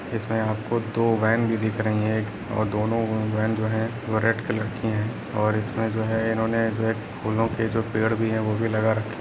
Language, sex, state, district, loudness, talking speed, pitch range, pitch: Hindi, male, Bihar, Jamui, -25 LUFS, 230 wpm, 110-115 Hz, 110 Hz